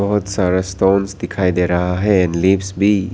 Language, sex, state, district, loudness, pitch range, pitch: Hindi, male, Arunachal Pradesh, Papum Pare, -16 LUFS, 90-100 Hz, 95 Hz